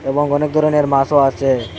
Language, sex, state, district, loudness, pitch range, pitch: Bengali, male, Assam, Hailakandi, -15 LUFS, 135-150 Hz, 140 Hz